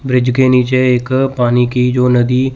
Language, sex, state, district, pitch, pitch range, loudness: Hindi, male, Chandigarh, Chandigarh, 125 Hz, 125-130 Hz, -12 LUFS